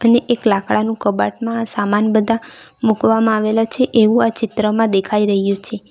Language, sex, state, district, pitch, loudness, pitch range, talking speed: Gujarati, female, Gujarat, Valsad, 220 Hz, -16 LUFS, 210-230 Hz, 150 wpm